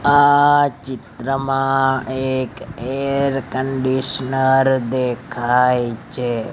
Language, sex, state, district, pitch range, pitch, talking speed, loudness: Gujarati, male, Gujarat, Gandhinagar, 125-135 Hz, 130 Hz, 65 wpm, -18 LUFS